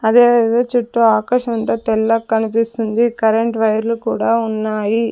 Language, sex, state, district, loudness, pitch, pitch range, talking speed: Telugu, female, Andhra Pradesh, Sri Satya Sai, -16 LUFS, 230 Hz, 220-235 Hz, 140 wpm